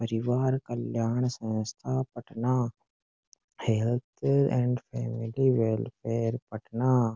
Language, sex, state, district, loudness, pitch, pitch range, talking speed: Rajasthani, male, Rajasthan, Nagaur, -29 LUFS, 120 Hz, 115-130 Hz, 75 wpm